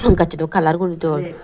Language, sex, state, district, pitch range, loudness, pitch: Chakma, female, Tripura, Dhalai, 160-175 Hz, -18 LUFS, 165 Hz